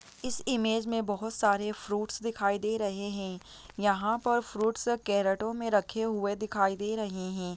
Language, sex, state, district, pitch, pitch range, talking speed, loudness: Hindi, female, Chhattisgarh, Bastar, 210 Hz, 200-225 Hz, 160 wpm, -31 LUFS